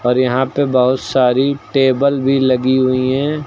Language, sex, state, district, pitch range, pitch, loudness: Hindi, male, Uttar Pradesh, Lucknow, 130-140 Hz, 130 Hz, -15 LUFS